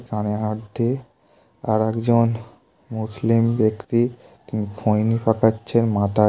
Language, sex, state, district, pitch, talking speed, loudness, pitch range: Bengali, male, West Bengal, Kolkata, 110 Hz, 115 wpm, -21 LUFS, 110-115 Hz